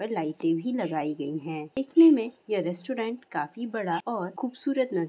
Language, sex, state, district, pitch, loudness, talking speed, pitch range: Hindi, female, Bihar, East Champaran, 225 Hz, -27 LUFS, 190 wpm, 165-260 Hz